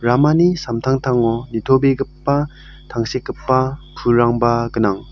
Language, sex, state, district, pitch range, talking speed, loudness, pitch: Garo, male, Meghalaya, South Garo Hills, 115-135 Hz, 70 wpm, -17 LUFS, 125 Hz